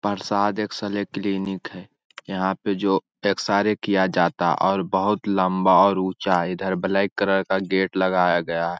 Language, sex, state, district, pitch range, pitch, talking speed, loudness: Hindi, male, Bihar, Jamui, 95-100 Hz, 95 Hz, 165 wpm, -22 LUFS